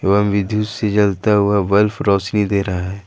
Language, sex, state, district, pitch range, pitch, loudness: Hindi, male, Jharkhand, Ranchi, 100-105 Hz, 100 Hz, -17 LUFS